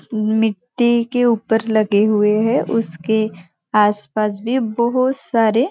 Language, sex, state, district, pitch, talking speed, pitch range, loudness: Hindi, female, Maharashtra, Nagpur, 220 Hz, 115 wpm, 210-235 Hz, -17 LUFS